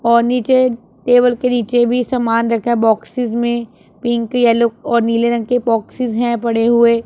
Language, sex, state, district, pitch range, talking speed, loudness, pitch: Hindi, female, Punjab, Pathankot, 230-245 Hz, 170 wpm, -15 LUFS, 235 Hz